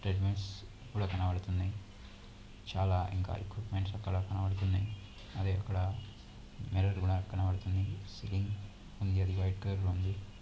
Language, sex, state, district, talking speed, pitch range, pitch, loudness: Telugu, male, Andhra Pradesh, Visakhapatnam, 125 wpm, 95-100 Hz, 95 Hz, -36 LUFS